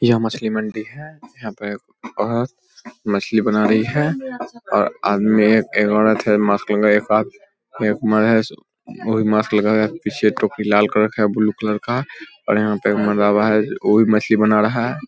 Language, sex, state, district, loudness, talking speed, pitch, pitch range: Hindi, male, Bihar, Vaishali, -17 LUFS, 185 wpm, 110 Hz, 105-110 Hz